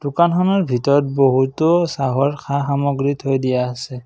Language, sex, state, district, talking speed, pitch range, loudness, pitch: Assamese, male, Assam, Kamrup Metropolitan, 120 wpm, 130-145 Hz, -18 LUFS, 140 Hz